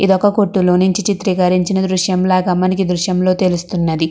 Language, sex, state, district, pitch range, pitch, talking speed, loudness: Telugu, female, Andhra Pradesh, Krishna, 180-190 Hz, 185 Hz, 145 wpm, -15 LUFS